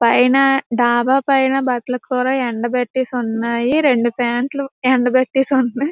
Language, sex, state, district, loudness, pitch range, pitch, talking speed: Telugu, female, Andhra Pradesh, Srikakulam, -17 LUFS, 240-265 Hz, 255 Hz, 120 wpm